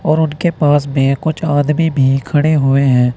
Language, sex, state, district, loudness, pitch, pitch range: Hindi, male, Uttar Pradesh, Saharanpur, -14 LUFS, 145 Hz, 135-155 Hz